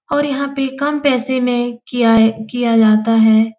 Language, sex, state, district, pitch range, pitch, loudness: Hindi, female, Uttar Pradesh, Etah, 225-270 Hz, 245 Hz, -15 LUFS